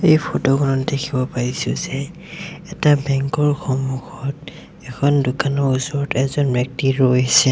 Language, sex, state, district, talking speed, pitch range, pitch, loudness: Assamese, male, Assam, Sonitpur, 125 wpm, 130-145 Hz, 140 Hz, -19 LUFS